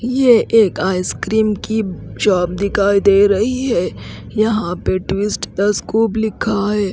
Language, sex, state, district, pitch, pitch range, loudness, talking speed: Hindi, female, Haryana, Rohtak, 210 Hz, 195-220 Hz, -16 LUFS, 140 wpm